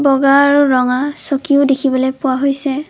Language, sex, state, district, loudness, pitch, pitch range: Assamese, female, Assam, Kamrup Metropolitan, -14 LUFS, 275 Hz, 265-280 Hz